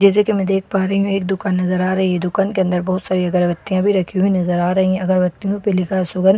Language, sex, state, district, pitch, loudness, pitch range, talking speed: Hindi, female, Bihar, Katihar, 190 Hz, -17 LUFS, 185-195 Hz, 300 wpm